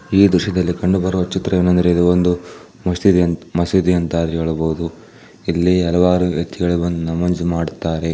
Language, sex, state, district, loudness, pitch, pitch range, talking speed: Kannada, male, Karnataka, Chamarajanagar, -17 LUFS, 90 Hz, 85-90 Hz, 120 wpm